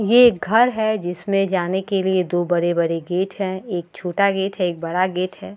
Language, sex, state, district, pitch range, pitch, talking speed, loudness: Hindi, female, Bihar, Vaishali, 175-200 Hz, 185 Hz, 215 wpm, -20 LUFS